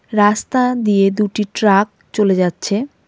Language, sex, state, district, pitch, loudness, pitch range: Bengali, female, West Bengal, Cooch Behar, 205 Hz, -16 LUFS, 200-215 Hz